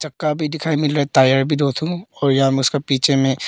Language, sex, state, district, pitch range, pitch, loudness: Hindi, male, Arunachal Pradesh, Papum Pare, 135-155 Hz, 145 Hz, -18 LUFS